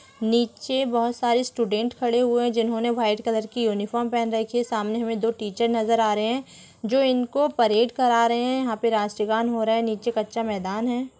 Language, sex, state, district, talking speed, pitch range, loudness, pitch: Hindi, female, Jharkhand, Sahebganj, 215 wpm, 220-240 Hz, -23 LUFS, 230 Hz